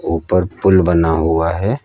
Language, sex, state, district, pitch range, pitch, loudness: Hindi, male, Uttar Pradesh, Lucknow, 80-95 Hz, 85 Hz, -15 LUFS